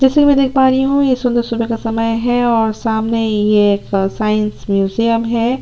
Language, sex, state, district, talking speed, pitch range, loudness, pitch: Hindi, female, Chhattisgarh, Sukma, 215 wpm, 215-245 Hz, -15 LUFS, 230 Hz